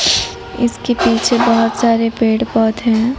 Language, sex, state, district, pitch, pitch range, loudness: Hindi, female, Odisha, Nuapada, 230 Hz, 225-240 Hz, -15 LUFS